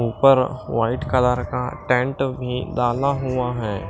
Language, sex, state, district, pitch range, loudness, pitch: Hindi, male, Maharashtra, Washim, 120-130 Hz, -21 LUFS, 125 Hz